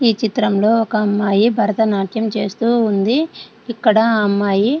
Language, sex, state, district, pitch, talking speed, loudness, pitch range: Telugu, female, Andhra Pradesh, Srikakulam, 220 Hz, 135 wpm, -16 LUFS, 205-230 Hz